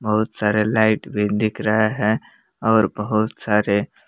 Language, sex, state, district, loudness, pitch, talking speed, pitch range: Hindi, male, Jharkhand, Palamu, -19 LUFS, 110 Hz, 145 wpm, 105-110 Hz